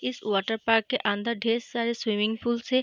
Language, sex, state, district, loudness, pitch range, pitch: Hindi, female, Uttar Pradesh, Jalaun, -27 LUFS, 210-235 Hz, 230 Hz